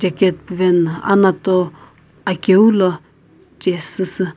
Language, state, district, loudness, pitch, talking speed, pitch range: Sumi, Nagaland, Kohima, -16 LUFS, 185 Hz, 80 wpm, 180-190 Hz